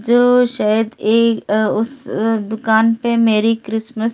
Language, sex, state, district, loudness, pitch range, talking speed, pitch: Hindi, female, Delhi, New Delhi, -16 LUFS, 220-230 Hz, 190 wpm, 225 Hz